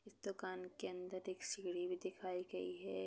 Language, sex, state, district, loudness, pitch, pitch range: Hindi, female, Chhattisgarh, Bastar, -46 LUFS, 180 Hz, 180-185 Hz